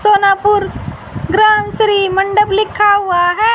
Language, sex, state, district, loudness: Hindi, female, Haryana, Jhajjar, -12 LUFS